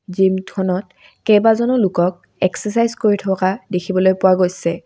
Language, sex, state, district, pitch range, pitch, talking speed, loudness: Assamese, female, Assam, Kamrup Metropolitan, 185-210 Hz, 190 Hz, 110 wpm, -17 LUFS